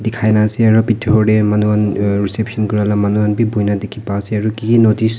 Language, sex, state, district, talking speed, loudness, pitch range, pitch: Nagamese, male, Nagaland, Kohima, 230 wpm, -15 LUFS, 105-110 Hz, 105 Hz